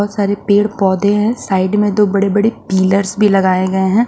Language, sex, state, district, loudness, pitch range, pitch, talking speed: Hindi, female, Haryana, Rohtak, -14 LUFS, 190-210 Hz, 200 Hz, 220 wpm